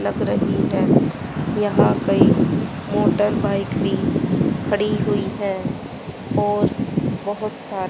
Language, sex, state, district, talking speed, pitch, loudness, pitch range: Hindi, female, Haryana, Rohtak, 100 wpm, 205 Hz, -20 LUFS, 195-210 Hz